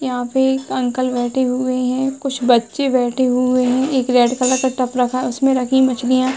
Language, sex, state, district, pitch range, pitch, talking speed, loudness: Hindi, female, Uttar Pradesh, Hamirpur, 250-260 Hz, 255 Hz, 215 wpm, -17 LUFS